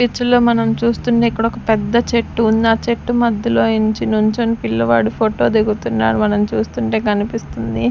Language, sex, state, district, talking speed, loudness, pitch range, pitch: Telugu, female, Andhra Pradesh, Sri Satya Sai, 135 wpm, -16 LUFS, 210-235 Hz, 220 Hz